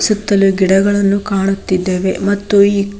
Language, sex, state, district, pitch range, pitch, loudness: Kannada, female, Karnataka, Koppal, 190-200 Hz, 200 Hz, -13 LUFS